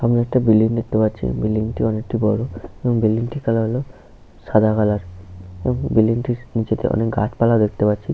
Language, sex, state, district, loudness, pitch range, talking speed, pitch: Bengali, male, West Bengal, Paschim Medinipur, -19 LUFS, 110-120 Hz, 175 wpm, 110 Hz